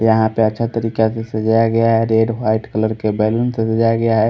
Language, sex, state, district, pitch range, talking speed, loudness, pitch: Hindi, male, Haryana, Rohtak, 110-115 Hz, 235 wpm, -16 LUFS, 110 Hz